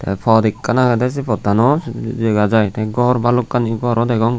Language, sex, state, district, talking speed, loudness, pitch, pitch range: Chakma, male, Tripura, Unakoti, 180 wpm, -16 LUFS, 115 Hz, 110-125 Hz